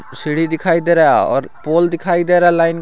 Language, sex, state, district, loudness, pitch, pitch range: Hindi, male, Jharkhand, Garhwa, -14 LUFS, 165 Hz, 160-175 Hz